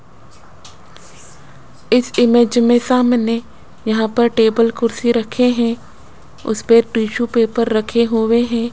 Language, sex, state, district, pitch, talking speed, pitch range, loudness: Hindi, female, Rajasthan, Jaipur, 235 Hz, 115 wpm, 225-240 Hz, -15 LUFS